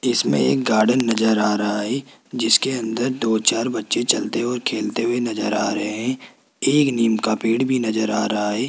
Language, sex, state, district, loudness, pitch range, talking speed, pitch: Hindi, male, Rajasthan, Jaipur, -20 LUFS, 105-125 Hz, 205 wpm, 115 Hz